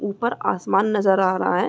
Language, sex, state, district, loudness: Hindi, female, Chhattisgarh, Raigarh, -20 LUFS